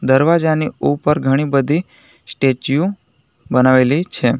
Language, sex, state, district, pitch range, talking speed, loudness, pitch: Gujarati, male, Gujarat, Navsari, 130-155 Hz, 95 wpm, -16 LUFS, 140 Hz